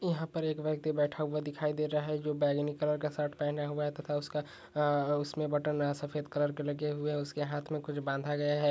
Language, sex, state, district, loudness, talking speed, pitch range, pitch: Hindi, male, Bihar, Saran, -34 LUFS, 235 wpm, 145-150 Hz, 150 Hz